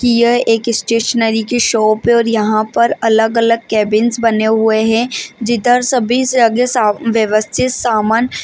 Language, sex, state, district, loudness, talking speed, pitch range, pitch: Hindi, female, Maharashtra, Chandrapur, -13 LUFS, 170 wpm, 220-240 Hz, 230 Hz